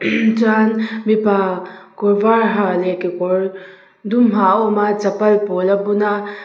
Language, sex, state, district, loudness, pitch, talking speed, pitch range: Mizo, female, Mizoram, Aizawl, -16 LUFS, 205 Hz, 160 wpm, 190-220 Hz